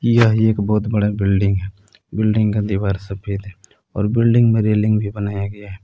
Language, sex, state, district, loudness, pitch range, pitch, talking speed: Hindi, male, Jharkhand, Palamu, -18 LUFS, 100-110 Hz, 105 Hz, 195 wpm